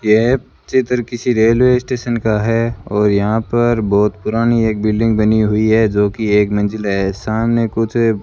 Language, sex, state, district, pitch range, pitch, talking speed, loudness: Hindi, male, Rajasthan, Bikaner, 105-115 Hz, 110 Hz, 175 wpm, -15 LUFS